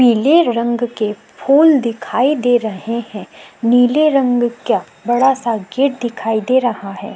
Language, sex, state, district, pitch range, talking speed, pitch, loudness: Hindi, female, Uttar Pradesh, Jyotiba Phule Nagar, 225-260 Hz, 150 wpm, 240 Hz, -15 LUFS